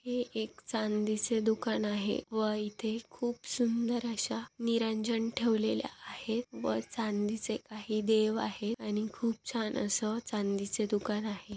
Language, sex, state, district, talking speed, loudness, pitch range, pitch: Marathi, female, Maharashtra, Solapur, 130 wpm, -33 LUFS, 210-230 Hz, 220 Hz